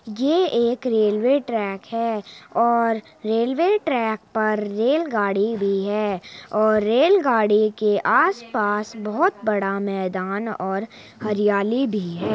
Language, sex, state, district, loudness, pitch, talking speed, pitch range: Hindi, female, Uttar Pradesh, Muzaffarnagar, -21 LUFS, 215 Hz, 120 wpm, 205-235 Hz